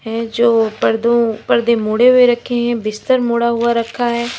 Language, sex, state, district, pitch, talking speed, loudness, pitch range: Hindi, female, Uttar Pradesh, Lalitpur, 235 Hz, 175 wpm, -15 LUFS, 225-240 Hz